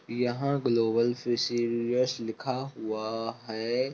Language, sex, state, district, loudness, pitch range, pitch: Hindi, male, Chhattisgarh, Rajnandgaon, -29 LUFS, 115-125 Hz, 120 Hz